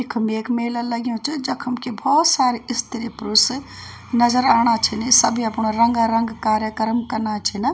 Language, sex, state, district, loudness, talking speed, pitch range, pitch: Garhwali, female, Uttarakhand, Tehri Garhwal, -19 LUFS, 165 wpm, 220-245 Hz, 235 Hz